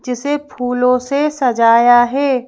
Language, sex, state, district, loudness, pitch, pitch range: Hindi, female, Madhya Pradesh, Bhopal, -14 LUFS, 250 Hz, 245-280 Hz